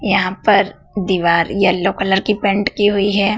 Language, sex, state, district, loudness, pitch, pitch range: Hindi, female, Madhya Pradesh, Dhar, -16 LUFS, 200 Hz, 190-205 Hz